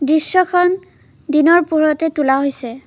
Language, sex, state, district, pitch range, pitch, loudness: Assamese, female, Assam, Kamrup Metropolitan, 280-350 Hz, 310 Hz, -15 LUFS